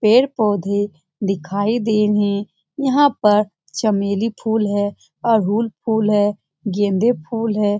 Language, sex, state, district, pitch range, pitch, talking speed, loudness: Hindi, female, Bihar, Saran, 200-225 Hz, 210 Hz, 130 wpm, -19 LUFS